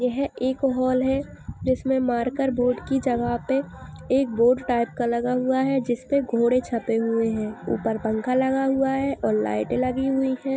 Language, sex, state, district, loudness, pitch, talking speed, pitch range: Hindi, female, Uttar Pradesh, Etah, -23 LUFS, 255 Hz, 185 wpm, 235-265 Hz